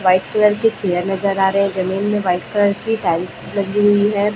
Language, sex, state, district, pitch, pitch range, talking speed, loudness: Hindi, female, Chhattisgarh, Raipur, 200 Hz, 185-205 Hz, 235 wpm, -17 LUFS